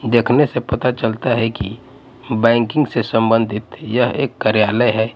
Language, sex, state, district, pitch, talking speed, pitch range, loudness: Hindi, male, Odisha, Nuapada, 115 Hz, 150 wpm, 110-125 Hz, -17 LUFS